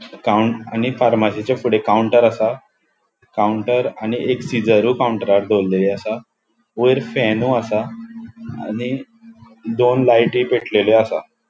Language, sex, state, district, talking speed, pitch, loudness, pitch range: Konkani, male, Goa, North and South Goa, 110 wpm, 115 Hz, -17 LUFS, 110-125 Hz